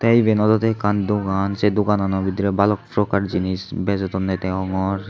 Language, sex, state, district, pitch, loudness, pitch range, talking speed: Chakma, male, Tripura, Unakoti, 100 Hz, -20 LUFS, 95-105 Hz, 155 wpm